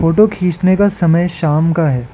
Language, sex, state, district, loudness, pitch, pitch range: Hindi, male, Arunachal Pradesh, Lower Dibang Valley, -13 LUFS, 170 Hz, 165-185 Hz